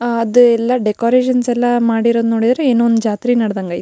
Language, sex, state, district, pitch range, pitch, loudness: Kannada, female, Karnataka, Belgaum, 225-245 Hz, 235 Hz, -14 LUFS